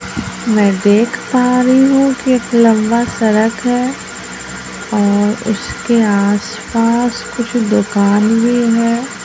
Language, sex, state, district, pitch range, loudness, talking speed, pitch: Hindi, female, Bihar, Katihar, 210-240 Hz, -13 LUFS, 115 wpm, 230 Hz